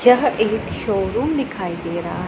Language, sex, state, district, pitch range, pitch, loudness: Hindi, female, Punjab, Pathankot, 180-245 Hz, 210 Hz, -20 LUFS